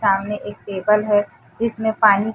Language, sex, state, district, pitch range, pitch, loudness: Hindi, female, Chhattisgarh, Raipur, 205-220 Hz, 210 Hz, -19 LUFS